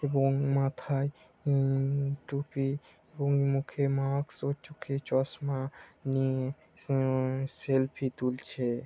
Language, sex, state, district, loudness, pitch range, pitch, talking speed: Bengali, male, West Bengal, Kolkata, -31 LUFS, 135-140 Hz, 135 Hz, 95 wpm